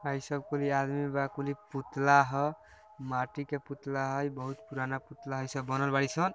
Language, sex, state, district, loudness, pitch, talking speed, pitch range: Bhojpuri, male, Bihar, Gopalganj, -32 LUFS, 140 Hz, 210 wpm, 135-145 Hz